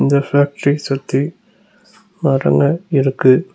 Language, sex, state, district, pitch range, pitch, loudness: Tamil, male, Tamil Nadu, Nilgiris, 135-190 Hz, 145 Hz, -16 LUFS